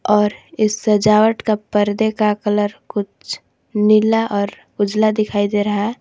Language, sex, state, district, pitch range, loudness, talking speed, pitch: Hindi, female, Jharkhand, Garhwa, 205-215 Hz, -17 LUFS, 150 wpm, 210 Hz